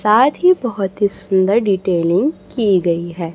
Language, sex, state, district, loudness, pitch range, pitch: Hindi, female, Chhattisgarh, Raipur, -16 LUFS, 180-230 Hz, 195 Hz